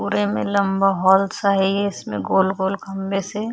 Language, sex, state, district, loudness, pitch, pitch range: Hindi, female, Chhattisgarh, Kabirdham, -20 LUFS, 195 Hz, 190-200 Hz